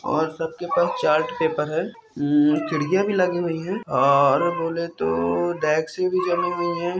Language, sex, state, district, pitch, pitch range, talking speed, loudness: Hindi, male, Rajasthan, Churu, 175 Hz, 160-190 Hz, 155 wpm, -22 LUFS